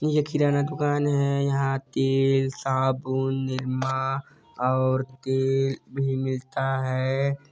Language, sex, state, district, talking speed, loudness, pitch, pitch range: Hindi, male, Chhattisgarh, Sarguja, 105 wpm, -25 LUFS, 135 Hz, 130-140 Hz